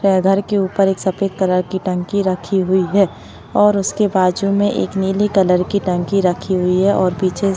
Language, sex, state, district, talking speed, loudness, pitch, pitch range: Hindi, female, Maharashtra, Chandrapur, 220 wpm, -16 LUFS, 190 Hz, 185-200 Hz